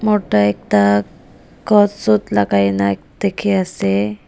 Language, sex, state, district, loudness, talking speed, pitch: Nagamese, female, Nagaland, Dimapur, -16 LUFS, 100 wpm, 105 Hz